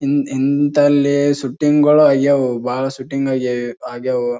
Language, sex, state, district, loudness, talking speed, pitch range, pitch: Kannada, male, Karnataka, Bijapur, -16 LUFS, 110 wpm, 125-145 Hz, 135 Hz